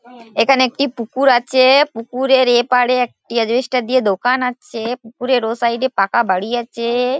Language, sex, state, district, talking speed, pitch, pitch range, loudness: Bengali, female, West Bengal, Paschim Medinipur, 160 wpm, 245 Hz, 235-255 Hz, -16 LUFS